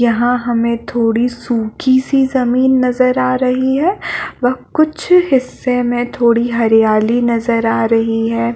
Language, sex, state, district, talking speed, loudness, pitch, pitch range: Hindi, female, Chhattisgarh, Balrampur, 145 wpm, -14 LUFS, 245 Hz, 230-255 Hz